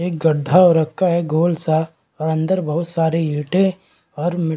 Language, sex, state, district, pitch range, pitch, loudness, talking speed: Hindi, male, Bihar, Kishanganj, 155-175 Hz, 165 Hz, -18 LUFS, 185 wpm